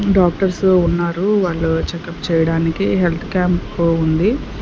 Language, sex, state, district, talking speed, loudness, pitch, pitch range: Telugu, female, Andhra Pradesh, Sri Satya Sai, 105 wpm, -17 LUFS, 175 Hz, 165-190 Hz